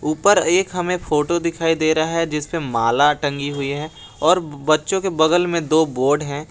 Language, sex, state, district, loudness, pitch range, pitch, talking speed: Hindi, male, Jharkhand, Garhwa, -19 LUFS, 145-170 Hz, 155 Hz, 195 wpm